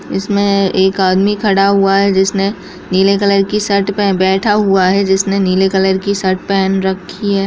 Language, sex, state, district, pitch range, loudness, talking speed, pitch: Hindi, female, Bihar, Kishanganj, 190-200 Hz, -13 LUFS, 185 wpm, 195 Hz